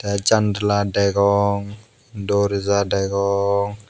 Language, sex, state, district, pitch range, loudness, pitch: Chakma, male, Tripura, Unakoti, 100-105 Hz, -19 LUFS, 100 Hz